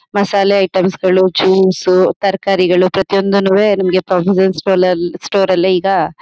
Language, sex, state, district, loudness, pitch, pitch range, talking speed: Kannada, female, Karnataka, Mysore, -13 LUFS, 190 Hz, 185-195 Hz, 115 wpm